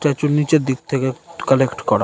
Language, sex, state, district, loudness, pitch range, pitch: Bengali, male, West Bengal, North 24 Parganas, -19 LUFS, 130-150 Hz, 140 Hz